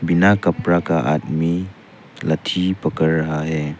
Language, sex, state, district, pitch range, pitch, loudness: Hindi, male, Arunachal Pradesh, Papum Pare, 80-85 Hz, 85 Hz, -19 LUFS